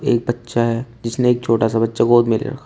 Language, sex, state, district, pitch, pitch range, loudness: Hindi, male, Uttar Pradesh, Shamli, 120 Hz, 115-120 Hz, -18 LUFS